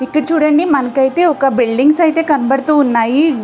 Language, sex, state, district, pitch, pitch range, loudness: Telugu, female, Andhra Pradesh, Visakhapatnam, 285 Hz, 265-310 Hz, -13 LUFS